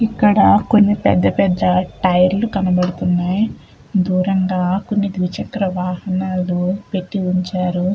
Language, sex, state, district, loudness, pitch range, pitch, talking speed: Telugu, female, Andhra Pradesh, Chittoor, -17 LUFS, 180-200 Hz, 185 Hz, 90 wpm